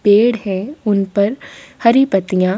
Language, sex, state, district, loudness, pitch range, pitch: Hindi, female, Chhattisgarh, Korba, -15 LUFS, 195-240 Hz, 205 Hz